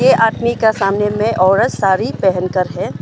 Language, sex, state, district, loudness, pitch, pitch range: Hindi, female, Arunachal Pradesh, Longding, -15 LUFS, 195 Hz, 185-220 Hz